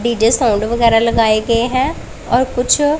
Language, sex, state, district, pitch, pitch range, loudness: Hindi, female, Punjab, Pathankot, 235 Hz, 225-255 Hz, -14 LUFS